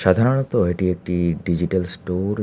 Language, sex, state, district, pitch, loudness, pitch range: Bengali, male, Tripura, Unakoti, 90 Hz, -21 LUFS, 90-100 Hz